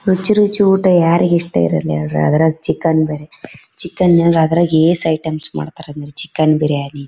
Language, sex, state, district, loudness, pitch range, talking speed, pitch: Kannada, female, Karnataka, Bellary, -14 LUFS, 150-170 Hz, 170 wpm, 160 Hz